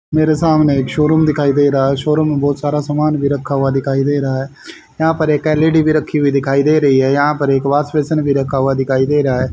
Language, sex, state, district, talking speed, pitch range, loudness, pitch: Hindi, male, Haryana, Charkhi Dadri, 270 wpm, 135-155 Hz, -14 LUFS, 145 Hz